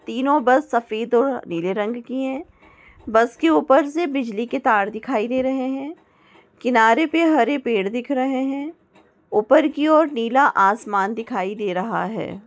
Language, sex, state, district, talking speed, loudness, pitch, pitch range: Hindi, female, Goa, North and South Goa, 170 wpm, -20 LUFS, 250 Hz, 215-275 Hz